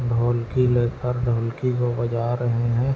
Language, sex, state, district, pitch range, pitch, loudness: Hindi, male, Chhattisgarh, Bilaspur, 120-125 Hz, 120 Hz, -23 LUFS